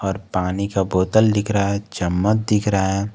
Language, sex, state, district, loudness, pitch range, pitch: Hindi, male, Jharkhand, Garhwa, -20 LUFS, 95-105 Hz, 100 Hz